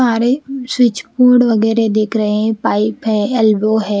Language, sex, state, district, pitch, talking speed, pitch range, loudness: Hindi, female, Bihar, West Champaran, 225 Hz, 165 wpm, 215-245 Hz, -14 LUFS